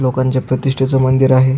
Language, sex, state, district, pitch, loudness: Marathi, male, Maharashtra, Aurangabad, 130 Hz, -14 LUFS